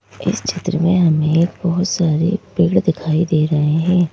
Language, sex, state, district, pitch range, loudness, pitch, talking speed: Hindi, male, Madhya Pradesh, Bhopal, 155-175 Hz, -17 LUFS, 170 Hz, 175 wpm